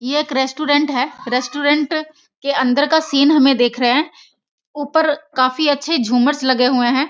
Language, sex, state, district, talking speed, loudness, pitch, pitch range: Hindi, female, Bihar, Sitamarhi, 170 wpm, -16 LUFS, 285 Hz, 255-300 Hz